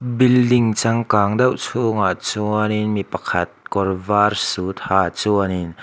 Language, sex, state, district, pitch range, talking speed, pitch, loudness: Mizo, male, Mizoram, Aizawl, 95-115 Hz, 125 wpm, 105 Hz, -19 LUFS